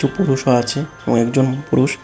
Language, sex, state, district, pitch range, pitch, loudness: Bengali, male, Tripura, West Tripura, 130-145 Hz, 135 Hz, -17 LUFS